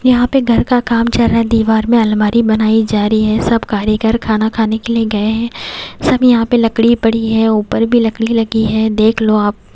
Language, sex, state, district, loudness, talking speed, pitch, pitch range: Hindi, female, Haryana, Jhajjar, -13 LUFS, 225 wpm, 225 Hz, 220-230 Hz